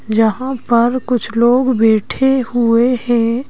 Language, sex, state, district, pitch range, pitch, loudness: Hindi, female, Madhya Pradesh, Bhopal, 230-255 Hz, 240 Hz, -14 LUFS